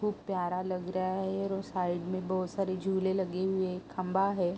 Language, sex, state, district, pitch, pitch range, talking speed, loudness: Hindi, female, Uttar Pradesh, Jalaun, 185 Hz, 185-190 Hz, 195 wpm, -33 LUFS